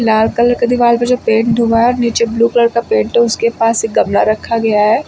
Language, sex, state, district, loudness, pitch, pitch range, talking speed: Hindi, female, Uttar Pradesh, Lucknow, -13 LUFS, 230 Hz, 225-235 Hz, 250 wpm